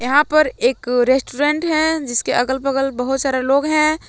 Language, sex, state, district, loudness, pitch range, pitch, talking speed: Hindi, female, Jharkhand, Palamu, -17 LUFS, 255-305 Hz, 270 Hz, 190 wpm